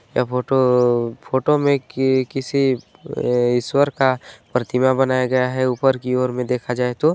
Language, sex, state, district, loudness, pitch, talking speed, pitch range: Hindi, male, Chhattisgarh, Bilaspur, -19 LUFS, 130 Hz, 175 wpm, 125-135 Hz